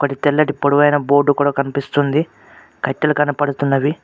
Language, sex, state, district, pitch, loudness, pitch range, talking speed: Telugu, male, Telangana, Mahabubabad, 145 Hz, -17 LUFS, 140-145 Hz, 120 wpm